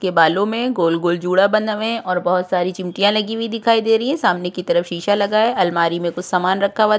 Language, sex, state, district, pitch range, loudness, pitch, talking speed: Hindi, female, Chhattisgarh, Korba, 180-215 Hz, -18 LUFS, 190 Hz, 265 wpm